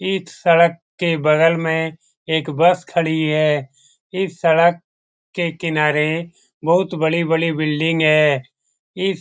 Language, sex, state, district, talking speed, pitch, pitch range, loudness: Hindi, male, Bihar, Jamui, 135 wpm, 165 Hz, 155-170 Hz, -18 LUFS